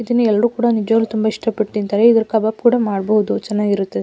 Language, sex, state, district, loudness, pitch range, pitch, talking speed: Kannada, female, Karnataka, Mysore, -16 LUFS, 210-230 Hz, 220 Hz, 180 wpm